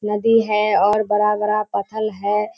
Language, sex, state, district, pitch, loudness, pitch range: Hindi, female, Bihar, Kishanganj, 210 Hz, -18 LUFS, 210-215 Hz